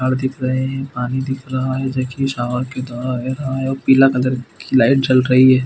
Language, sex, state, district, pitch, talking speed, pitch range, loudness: Hindi, male, Chhattisgarh, Bilaspur, 130 Hz, 235 wpm, 130-135 Hz, -18 LUFS